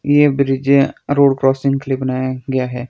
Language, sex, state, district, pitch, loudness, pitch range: Hindi, male, Himachal Pradesh, Shimla, 135 Hz, -16 LUFS, 130-140 Hz